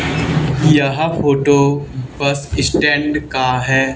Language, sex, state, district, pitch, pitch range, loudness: Hindi, male, Haryana, Charkhi Dadri, 145 Hz, 135-150 Hz, -15 LUFS